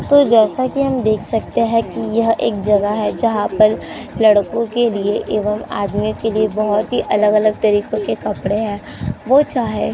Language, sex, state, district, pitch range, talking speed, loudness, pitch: Hindi, female, Uttar Pradesh, Jyotiba Phule Nagar, 210-230 Hz, 195 wpm, -17 LUFS, 215 Hz